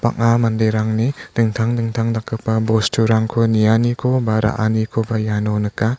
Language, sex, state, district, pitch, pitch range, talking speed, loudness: Garo, male, Meghalaya, West Garo Hills, 110 Hz, 110-115 Hz, 110 wpm, -18 LUFS